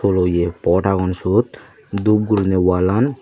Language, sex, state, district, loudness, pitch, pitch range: Chakma, male, Tripura, Unakoti, -17 LUFS, 95 Hz, 90-105 Hz